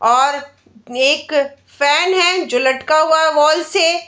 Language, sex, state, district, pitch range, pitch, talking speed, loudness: Hindi, female, Bihar, Darbhanga, 270-320 Hz, 295 Hz, 175 wpm, -14 LUFS